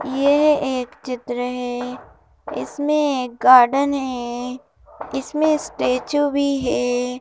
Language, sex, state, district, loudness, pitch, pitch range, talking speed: Hindi, female, Madhya Pradesh, Bhopal, -20 LUFS, 260 Hz, 250-285 Hz, 100 wpm